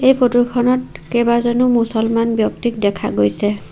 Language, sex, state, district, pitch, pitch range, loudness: Assamese, female, Assam, Sonitpur, 235 Hz, 210-245 Hz, -16 LUFS